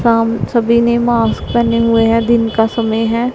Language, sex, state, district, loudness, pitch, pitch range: Hindi, female, Punjab, Pathankot, -13 LUFS, 230 Hz, 225-235 Hz